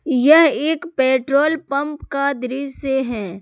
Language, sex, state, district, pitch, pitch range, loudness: Hindi, female, Jharkhand, Garhwa, 275 Hz, 260-300 Hz, -18 LUFS